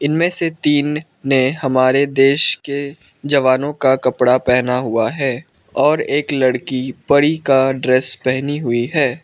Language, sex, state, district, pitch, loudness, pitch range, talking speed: Hindi, male, Arunachal Pradesh, Lower Dibang Valley, 135 Hz, -16 LUFS, 130-145 Hz, 145 wpm